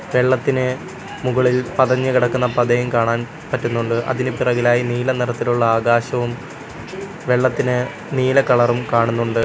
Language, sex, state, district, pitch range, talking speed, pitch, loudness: Malayalam, male, Kerala, Kollam, 120-130 Hz, 100 wpm, 125 Hz, -18 LUFS